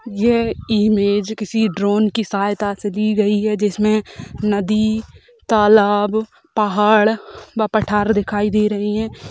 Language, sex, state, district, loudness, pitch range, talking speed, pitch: Hindi, female, Bihar, Sitamarhi, -17 LUFS, 205-215 Hz, 130 wpm, 210 Hz